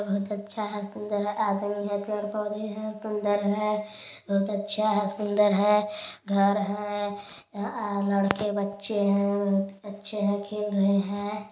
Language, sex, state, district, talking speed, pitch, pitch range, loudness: Hindi, male, Chhattisgarh, Balrampur, 145 wpm, 205 Hz, 205-210 Hz, -27 LUFS